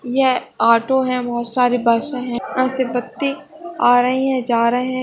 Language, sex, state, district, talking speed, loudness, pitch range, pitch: Hindi, female, Goa, North and South Goa, 180 wpm, -18 LUFS, 245-260 Hz, 250 Hz